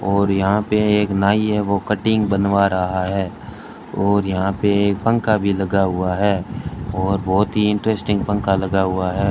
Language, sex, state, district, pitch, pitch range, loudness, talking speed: Hindi, male, Rajasthan, Bikaner, 100 Hz, 95-105 Hz, -19 LUFS, 180 wpm